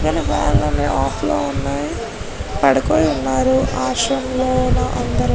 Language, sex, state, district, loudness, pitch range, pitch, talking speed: Telugu, female, Andhra Pradesh, Guntur, -18 LUFS, 125-130 Hz, 130 Hz, 125 wpm